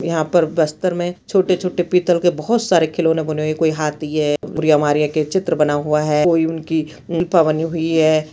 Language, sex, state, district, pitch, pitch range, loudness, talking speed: Hindi, female, Chhattisgarh, Bastar, 160 Hz, 155-175 Hz, -17 LUFS, 225 wpm